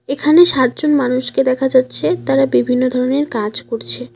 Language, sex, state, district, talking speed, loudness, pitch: Bengali, female, West Bengal, Cooch Behar, 160 wpm, -15 LUFS, 250 Hz